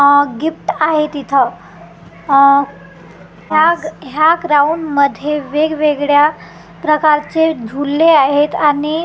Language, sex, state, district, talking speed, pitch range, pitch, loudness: Marathi, female, Maharashtra, Gondia, 95 wpm, 285-315 Hz, 300 Hz, -13 LUFS